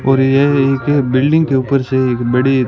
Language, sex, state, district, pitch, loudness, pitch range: Hindi, male, Rajasthan, Bikaner, 135 Hz, -13 LUFS, 130-140 Hz